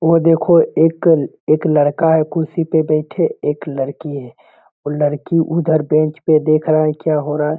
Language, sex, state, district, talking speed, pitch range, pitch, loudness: Hindi, male, Bihar, Jamui, 180 wpm, 150-160 Hz, 155 Hz, -16 LUFS